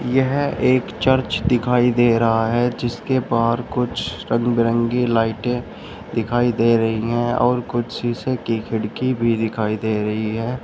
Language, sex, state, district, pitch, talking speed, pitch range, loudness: Hindi, male, Uttar Pradesh, Shamli, 120 Hz, 150 wpm, 115-125 Hz, -20 LUFS